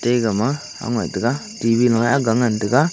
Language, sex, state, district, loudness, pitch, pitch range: Wancho, male, Arunachal Pradesh, Longding, -19 LUFS, 120 Hz, 115-130 Hz